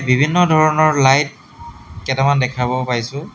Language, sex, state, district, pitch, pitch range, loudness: Assamese, male, Assam, Hailakandi, 135 Hz, 125-150 Hz, -15 LUFS